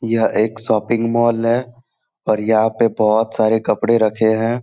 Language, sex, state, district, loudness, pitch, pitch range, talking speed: Hindi, male, Jharkhand, Jamtara, -17 LUFS, 115 Hz, 110-115 Hz, 170 wpm